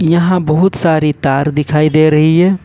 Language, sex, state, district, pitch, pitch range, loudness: Hindi, male, Jharkhand, Ranchi, 155 Hz, 150-175 Hz, -12 LUFS